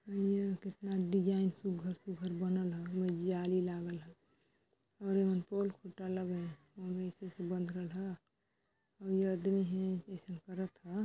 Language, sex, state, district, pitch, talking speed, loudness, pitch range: Chhattisgarhi, female, Chhattisgarh, Balrampur, 185 Hz, 155 wpm, -38 LUFS, 180-195 Hz